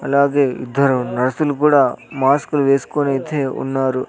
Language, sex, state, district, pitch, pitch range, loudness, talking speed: Telugu, male, Andhra Pradesh, Sri Satya Sai, 140 Hz, 130-145 Hz, -17 LUFS, 115 wpm